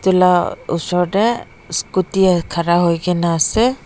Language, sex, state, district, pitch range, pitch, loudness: Nagamese, female, Nagaland, Dimapur, 170-190 Hz, 180 Hz, -17 LUFS